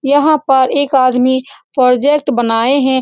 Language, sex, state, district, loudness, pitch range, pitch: Hindi, female, Bihar, Saran, -12 LUFS, 255-285 Hz, 265 Hz